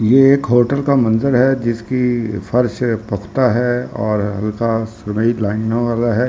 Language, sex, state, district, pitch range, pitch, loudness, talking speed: Hindi, male, Delhi, New Delhi, 110-125 Hz, 115 Hz, -16 LUFS, 150 wpm